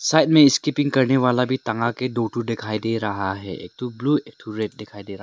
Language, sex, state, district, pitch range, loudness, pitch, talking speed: Hindi, male, Arunachal Pradesh, Lower Dibang Valley, 110-130 Hz, -21 LUFS, 115 Hz, 250 wpm